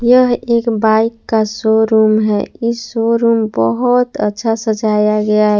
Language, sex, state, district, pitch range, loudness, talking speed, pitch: Hindi, female, Jharkhand, Palamu, 215-235 Hz, -14 LUFS, 130 wpm, 220 Hz